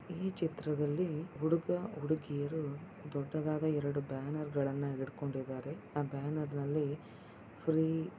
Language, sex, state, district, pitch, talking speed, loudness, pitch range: Kannada, male, Karnataka, Dakshina Kannada, 150 Hz, 95 wpm, -37 LUFS, 145-160 Hz